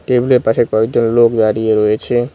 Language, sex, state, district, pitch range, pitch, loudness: Bengali, male, West Bengal, Cooch Behar, 110-120 Hz, 115 Hz, -13 LUFS